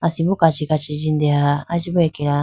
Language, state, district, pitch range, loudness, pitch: Idu Mishmi, Arunachal Pradesh, Lower Dibang Valley, 145-170 Hz, -19 LUFS, 155 Hz